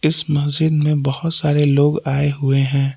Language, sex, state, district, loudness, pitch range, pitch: Hindi, male, Jharkhand, Palamu, -16 LUFS, 140-155 Hz, 145 Hz